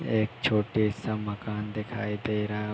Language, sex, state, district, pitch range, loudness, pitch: Hindi, male, Uttar Pradesh, Hamirpur, 105-110 Hz, -29 LUFS, 105 Hz